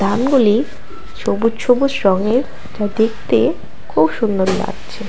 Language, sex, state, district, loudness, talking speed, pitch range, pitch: Bengali, female, West Bengal, Alipurduar, -17 LUFS, 105 wpm, 205-250 Hz, 225 Hz